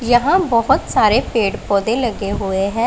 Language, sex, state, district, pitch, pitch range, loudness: Hindi, female, Punjab, Pathankot, 230 Hz, 200-240 Hz, -16 LUFS